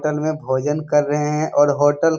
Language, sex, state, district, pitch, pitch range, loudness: Hindi, male, Bihar, Jamui, 150 Hz, 145-155 Hz, -19 LUFS